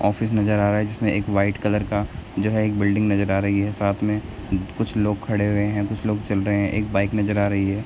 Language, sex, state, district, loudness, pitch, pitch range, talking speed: Hindi, male, Bihar, Begusarai, -22 LUFS, 105 Hz, 100-105 Hz, 280 wpm